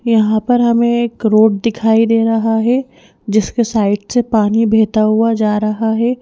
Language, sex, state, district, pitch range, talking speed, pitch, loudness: Hindi, female, Madhya Pradesh, Bhopal, 215-235 Hz, 175 wpm, 225 Hz, -14 LUFS